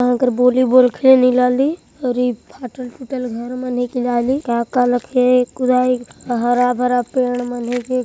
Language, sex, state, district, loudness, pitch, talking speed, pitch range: Hindi, male, Chhattisgarh, Jashpur, -17 LUFS, 250 Hz, 150 wpm, 245-255 Hz